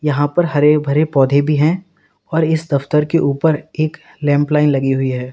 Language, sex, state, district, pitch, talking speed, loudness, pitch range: Hindi, male, Uttar Pradesh, Lalitpur, 150 Hz, 190 wpm, -16 LUFS, 140-160 Hz